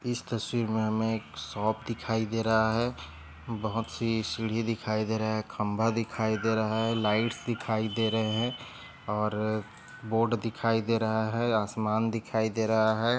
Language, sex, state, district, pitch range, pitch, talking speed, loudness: Hindi, male, Maharashtra, Chandrapur, 110-115 Hz, 110 Hz, 165 wpm, -29 LUFS